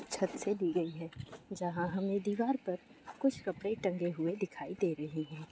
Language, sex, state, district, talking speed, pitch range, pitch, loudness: Hindi, female, Bihar, Sitamarhi, 185 wpm, 165-205 Hz, 180 Hz, -36 LUFS